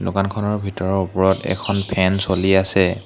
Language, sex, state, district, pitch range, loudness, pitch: Assamese, male, Assam, Hailakandi, 95-100 Hz, -19 LUFS, 95 Hz